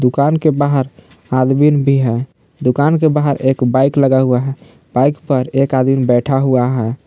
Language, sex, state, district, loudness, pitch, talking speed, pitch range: Hindi, male, Jharkhand, Palamu, -14 LUFS, 135 Hz, 180 wpm, 130-145 Hz